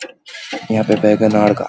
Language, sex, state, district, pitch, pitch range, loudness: Hindi, male, Bihar, Muzaffarpur, 105 Hz, 105-110 Hz, -14 LUFS